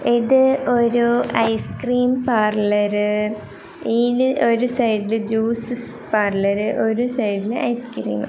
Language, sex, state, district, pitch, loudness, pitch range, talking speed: Malayalam, female, Kerala, Kasaragod, 230 Hz, -19 LUFS, 210-245 Hz, 95 wpm